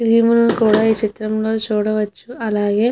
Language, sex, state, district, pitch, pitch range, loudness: Telugu, female, Andhra Pradesh, Chittoor, 220 Hz, 215-230 Hz, -17 LUFS